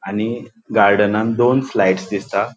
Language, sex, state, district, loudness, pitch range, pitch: Konkani, male, Goa, North and South Goa, -17 LUFS, 100-120 Hz, 105 Hz